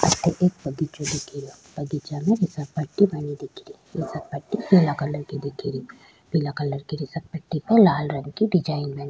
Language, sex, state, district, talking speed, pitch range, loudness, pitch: Rajasthani, female, Rajasthan, Churu, 205 wpm, 145-170 Hz, -24 LUFS, 150 Hz